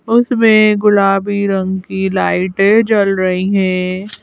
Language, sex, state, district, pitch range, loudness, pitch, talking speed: Hindi, female, Madhya Pradesh, Bhopal, 190-210 Hz, -13 LUFS, 195 Hz, 115 wpm